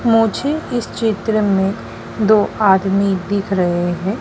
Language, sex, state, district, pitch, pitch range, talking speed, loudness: Hindi, female, Madhya Pradesh, Dhar, 200 Hz, 195-225 Hz, 130 wpm, -17 LUFS